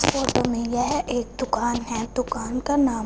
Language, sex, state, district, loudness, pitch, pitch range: Hindi, female, Punjab, Fazilka, -24 LUFS, 240 Hz, 230-250 Hz